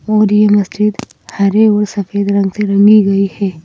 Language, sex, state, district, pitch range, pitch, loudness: Hindi, female, Madhya Pradesh, Bhopal, 200-210 Hz, 205 Hz, -12 LUFS